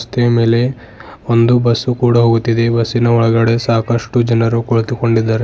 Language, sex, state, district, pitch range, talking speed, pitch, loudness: Kannada, male, Karnataka, Bidar, 115-120 Hz, 120 wpm, 115 Hz, -13 LUFS